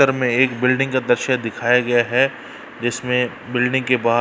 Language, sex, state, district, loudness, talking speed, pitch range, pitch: Hindi, male, Uttar Pradesh, Varanasi, -19 LUFS, 200 wpm, 120-130 Hz, 125 Hz